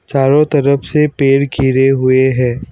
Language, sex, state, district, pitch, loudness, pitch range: Hindi, male, Assam, Kamrup Metropolitan, 135 Hz, -12 LUFS, 130-140 Hz